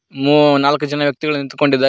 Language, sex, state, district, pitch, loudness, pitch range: Kannada, male, Karnataka, Koppal, 145 Hz, -15 LUFS, 140-150 Hz